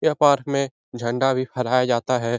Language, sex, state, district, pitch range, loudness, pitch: Hindi, male, Bihar, Jahanabad, 120-140 Hz, -22 LUFS, 130 Hz